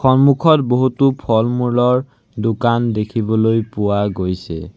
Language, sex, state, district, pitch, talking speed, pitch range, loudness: Assamese, male, Assam, Sonitpur, 115 Hz, 90 wpm, 105-130 Hz, -16 LUFS